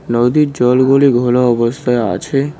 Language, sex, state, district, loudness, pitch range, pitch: Bengali, male, West Bengal, Cooch Behar, -13 LUFS, 120-140 Hz, 125 Hz